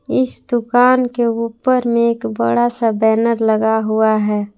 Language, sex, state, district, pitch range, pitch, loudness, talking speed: Hindi, female, Jharkhand, Palamu, 220-240 Hz, 230 Hz, -16 LUFS, 155 wpm